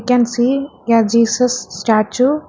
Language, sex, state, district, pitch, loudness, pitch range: English, female, Telangana, Hyderabad, 240 Hz, -15 LUFS, 230-250 Hz